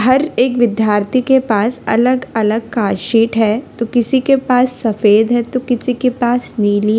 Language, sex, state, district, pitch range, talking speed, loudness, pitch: Hindi, female, Uttar Pradesh, Lalitpur, 220-255 Hz, 190 wpm, -14 LUFS, 240 Hz